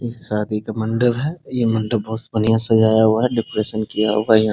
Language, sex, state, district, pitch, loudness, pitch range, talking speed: Hindi, male, Bihar, Muzaffarpur, 110 Hz, -18 LUFS, 110-115 Hz, 240 wpm